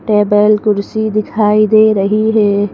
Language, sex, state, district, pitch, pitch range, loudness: Hindi, female, Madhya Pradesh, Bhopal, 210 Hz, 205-215 Hz, -12 LUFS